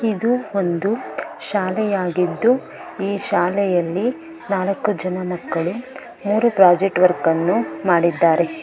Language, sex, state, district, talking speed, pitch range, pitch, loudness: Kannada, female, Karnataka, Bangalore, 90 wpm, 175-215 Hz, 190 Hz, -19 LUFS